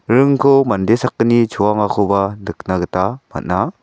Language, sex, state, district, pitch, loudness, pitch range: Garo, male, Meghalaya, South Garo Hills, 105 Hz, -16 LUFS, 95-125 Hz